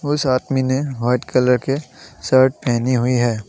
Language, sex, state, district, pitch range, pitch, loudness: Hindi, male, Assam, Sonitpur, 125-135 Hz, 130 Hz, -18 LUFS